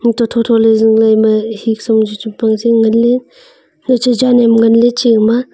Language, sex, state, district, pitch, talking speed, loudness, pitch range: Wancho, female, Arunachal Pradesh, Longding, 230 Hz, 150 wpm, -11 LUFS, 220-240 Hz